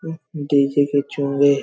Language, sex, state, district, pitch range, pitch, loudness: Hindi, male, Chhattisgarh, Raigarh, 140-145 Hz, 140 Hz, -19 LUFS